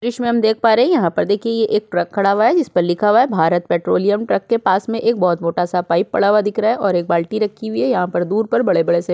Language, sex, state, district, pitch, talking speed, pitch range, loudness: Hindi, female, Uttar Pradesh, Budaun, 205 Hz, 330 wpm, 175-225 Hz, -17 LUFS